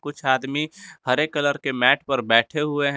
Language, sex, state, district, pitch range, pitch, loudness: Hindi, male, Jharkhand, Garhwa, 130-150 Hz, 145 Hz, -21 LUFS